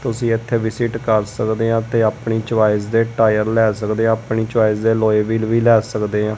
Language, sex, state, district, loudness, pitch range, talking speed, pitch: Punjabi, male, Punjab, Kapurthala, -17 LUFS, 110-115 Hz, 215 wpm, 110 Hz